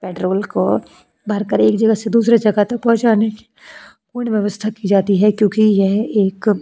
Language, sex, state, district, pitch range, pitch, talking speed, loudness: Hindi, female, Uttar Pradesh, Jyotiba Phule Nagar, 200-220 Hz, 210 Hz, 180 wpm, -16 LUFS